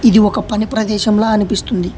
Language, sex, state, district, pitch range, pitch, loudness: Telugu, male, Telangana, Hyderabad, 210-220 Hz, 215 Hz, -15 LUFS